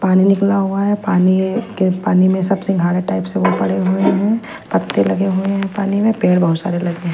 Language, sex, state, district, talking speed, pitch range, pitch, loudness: Hindi, female, Punjab, Fazilka, 225 wpm, 175-195 Hz, 190 Hz, -16 LUFS